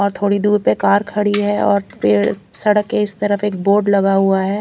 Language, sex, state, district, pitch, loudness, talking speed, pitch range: Hindi, female, Chandigarh, Chandigarh, 200 Hz, -16 LUFS, 235 wpm, 195-205 Hz